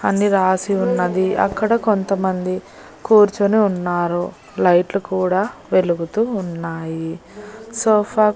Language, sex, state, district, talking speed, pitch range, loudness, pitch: Telugu, female, Andhra Pradesh, Annamaya, 95 wpm, 180-210 Hz, -18 LUFS, 190 Hz